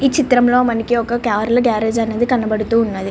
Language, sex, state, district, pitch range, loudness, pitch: Telugu, female, Andhra Pradesh, Srikakulam, 220-245 Hz, -16 LUFS, 235 Hz